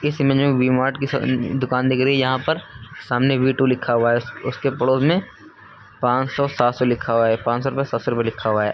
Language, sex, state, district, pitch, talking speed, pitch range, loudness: Hindi, male, Uttar Pradesh, Lucknow, 130 Hz, 245 wpm, 120-135 Hz, -20 LUFS